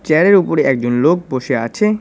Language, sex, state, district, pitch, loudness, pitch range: Bengali, male, West Bengal, Cooch Behar, 155 Hz, -14 LUFS, 130-185 Hz